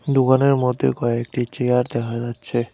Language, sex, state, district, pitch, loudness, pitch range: Bengali, male, West Bengal, Cooch Behar, 125 Hz, -20 LUFS, 120-130 Hz